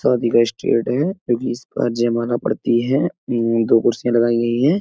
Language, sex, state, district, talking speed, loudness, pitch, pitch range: Hindi, male, Uttar Pradesh, Etah, 200 wpm, -18 LUFS, 120 Hz, 115-125 Hz